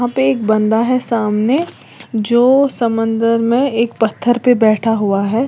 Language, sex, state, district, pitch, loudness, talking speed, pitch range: Hindi, female, Uttar Pradesh, Lalitpur, 230 Hz, -14 LUFS, 165 wpm, 220-250 Hz